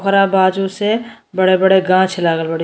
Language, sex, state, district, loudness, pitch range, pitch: Bhojpuri, female, Uttar Pradesh, Ghazipur, -14 LUFS, 185-195 Hz, 190 Hz